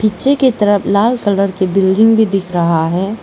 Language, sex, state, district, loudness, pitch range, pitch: Hindi, female, Arunachal Pradesh, Lower Dibang Valley, -13 LUFS, 190-220 Hz, 200 Hz